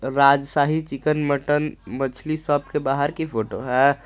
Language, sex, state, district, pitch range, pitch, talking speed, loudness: Hindi, male, Jharkhand, Garhwa, 135-150 Hz, 140 Hz, 150 wpm, -22 LUFS